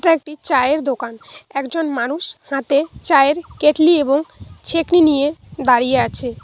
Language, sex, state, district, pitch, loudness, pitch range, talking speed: Bengali, female, West Bengal, Cooch Behar, 285 Hz, -16 LUFS, 270-320 Hz, 130 wpm